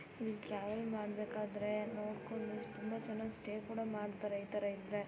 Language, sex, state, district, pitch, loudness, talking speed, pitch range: Kannada, female, Karnataka, Belgaum, 210 Hz, -43 LUFS, 120 wpm, 205-220 Hz